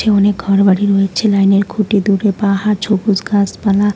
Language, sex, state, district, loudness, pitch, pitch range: Bengali, female, West Bengal, Alipurduar, -13 LUFS, 200 Hz, 195-205 Hz